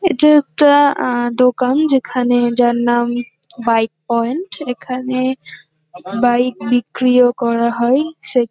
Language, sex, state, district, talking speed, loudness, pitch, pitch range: Bengali, female, West Bengal, North 24 Parganas, 120 wpm, -15 LUFS, 245 Hz, 240-260 Hz